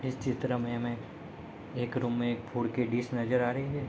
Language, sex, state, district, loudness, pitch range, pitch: Hindi, male, Bihar, Gopalganj, -32 LUFS, 120-130 Hz, 120 Hz